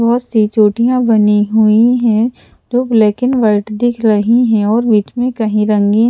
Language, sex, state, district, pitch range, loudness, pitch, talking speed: Hindi, female, Odisha, Sambalpur, 215-240 Hz, -12 LUFS, 225 Hz, 175 wpm